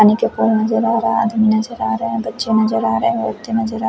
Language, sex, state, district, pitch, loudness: Hindi, female, Chhattisgarh, Raipur, 115 Hz, -17 LUFS